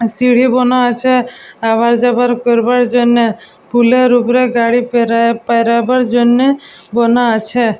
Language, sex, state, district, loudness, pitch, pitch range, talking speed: Bengali, female, West Bengal, Jalpaiguri, -12 LUFS, 240 Hz, 235-250 Hz, 125 wpm